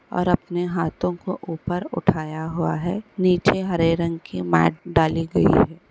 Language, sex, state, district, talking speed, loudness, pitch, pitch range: Hindi, female, Uttar Pradesh, Etah, 160 wpm, -22 LUFS, 170 Hz, 160-180 Hz